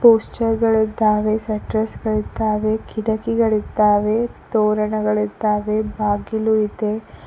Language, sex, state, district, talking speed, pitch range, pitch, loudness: Kannada, female, Karnataka, Koppal, 50 wpm, 210-220 Hz, 215 Hz, -19 LUFS